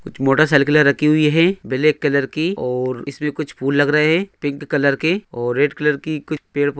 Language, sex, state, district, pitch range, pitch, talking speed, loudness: Hindi, male, Andhra Pradesh, Anantapur, 140-155 Hz, 150 Hz, 175 wpm, -18 LUFS